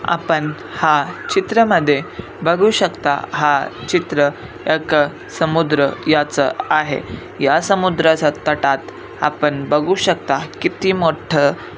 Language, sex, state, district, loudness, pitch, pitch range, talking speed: Marathi, male, Maharashtra, Sindhudurg, -17 LUFS, 155 Hz, 145-180 Hz, 100 wpm